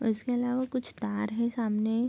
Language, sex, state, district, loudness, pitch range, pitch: Hindi, female, Bihar, Bhagalpur, -30 LUFS, 215-245 Hz, 235 Hz